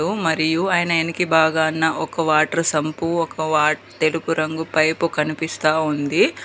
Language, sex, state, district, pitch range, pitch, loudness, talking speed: Telugu, female, Telangana, Mahabubabad, 155-165 Hz, 160 Hz, -19 LUFS, 130 wpm